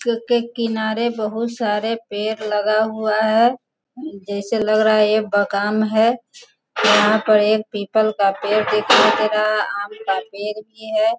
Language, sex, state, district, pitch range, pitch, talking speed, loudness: Hindi, female, Bihar, Sitamarhi, 210-230 Hz, 215 Hz, 155 wpm, -18 LUFS